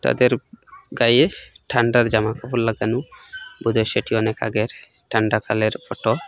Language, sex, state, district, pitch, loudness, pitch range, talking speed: Bengali, male, Assam, Hailakandi, 115 Hz, -20 LUFS, 110-130 Hz, 135 wpm